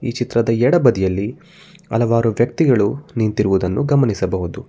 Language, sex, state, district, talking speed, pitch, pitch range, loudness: Kannada, male, Karnataka, Bangalore, 100 wpm, 115 Hz, 105-135 Hz, -17 LUFS